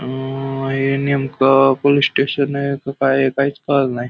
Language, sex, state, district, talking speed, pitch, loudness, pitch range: Marathi, male, Maharashtra, Pune, 175 wpm, 135 Hz, -17 LUFS, 135-140 Hz